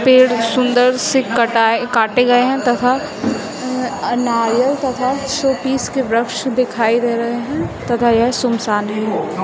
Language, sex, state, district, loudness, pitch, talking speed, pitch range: Hindi, female, Chhattisgarh, Raipur, -16 LUFS, 245 Hz, 135 wpm, 230-260 Hz